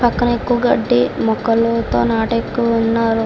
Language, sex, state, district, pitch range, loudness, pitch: Telugu, female, Andhra Pradesh, Srikakulam, 225-235 Hz, -16 LUFS, 230 Hz